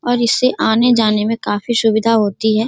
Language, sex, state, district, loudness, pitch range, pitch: Hindi, female, Bihar, Darbhanga, -15 LUFS, 215-235 Hz, 225 Hz